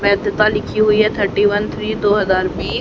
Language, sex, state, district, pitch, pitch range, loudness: Hindi, female, Haryana, Charkhi Dadri, 205 Hz, 200-215 Hz, -16 LUFS